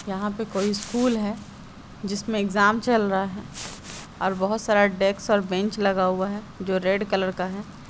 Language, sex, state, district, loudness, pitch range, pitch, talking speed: Hindi, female, Bihar, Bhagalpur, -24 LUFS, 190-210 Hz, 200 Hz, 180 wpm